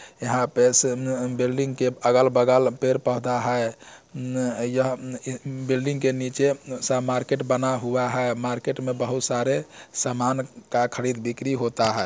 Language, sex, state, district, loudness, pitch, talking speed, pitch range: Hindi, male, Bihar, Muzaffarpur, -24 LUFS, 125 Hz, 145 wpm, 125-130 Hz